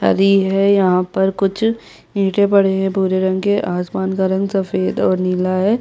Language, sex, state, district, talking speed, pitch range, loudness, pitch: Hindi, female, Chhattisgarh, Jashpur, 185 wpm, 185-200 Hz, -16 LUFS, 190 Hz